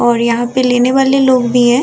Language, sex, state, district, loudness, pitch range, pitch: Hindi, female, Bihar, Vaishali, -12 LUFS, 240-260 Hz, 245 Hz